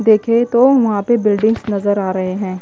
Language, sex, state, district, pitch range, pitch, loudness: Hindi, female, Haryana, Jhajjar, 200-230 Hz, 215 Hz, -15 LUFS